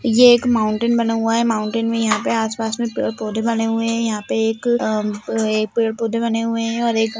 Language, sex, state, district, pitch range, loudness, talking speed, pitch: Hindi, female, Bihar, Jamui, 220-230 Hz, -19 LUFS, 265 wpm, 225 Hz